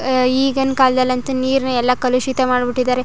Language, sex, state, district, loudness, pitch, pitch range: Kannada, female, Karnataka, Chamarajanagar, -17 LUFS, 255 Hz, 250-265 Hz